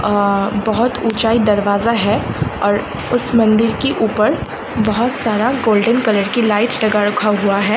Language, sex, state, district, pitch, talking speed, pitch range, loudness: Hindi, female, Uttar Pradesh, Varanasi, 215 Hz, 155 wpm, 205-230 Hz, -15 LUFS